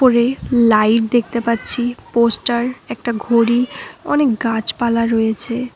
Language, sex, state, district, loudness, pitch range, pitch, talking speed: Bengali, female, West Bengal, Cooch Behar, -17 LUFS, 230-245 Hz, 235 Hz, 105 wpm